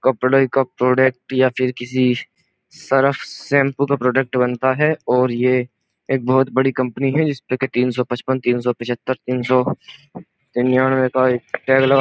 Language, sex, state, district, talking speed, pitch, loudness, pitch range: Hindi, male, Uttar Pradesh, Jyotiba Phule Nagar, 185 wpm, 130 Hz, -18 LUFS, 125-135 Hz